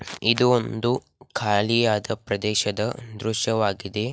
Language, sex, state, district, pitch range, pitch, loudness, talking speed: Kannada, male, Karnataka, Belgaum, 105-115 Hz, 110 Hz, -23 LUFS, 100 wpm